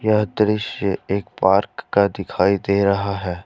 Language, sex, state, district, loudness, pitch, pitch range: Hindi, male, Jharkhand, Ranchi, -20 LUFS, 100 Hz, 100-105 Hz